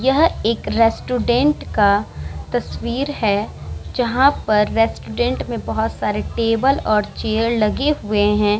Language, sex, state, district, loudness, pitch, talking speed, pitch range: Hindi, female, Bihar, Vaishali, -19 LUFS, 225 Hz, 130 wpm, 210-250 Hz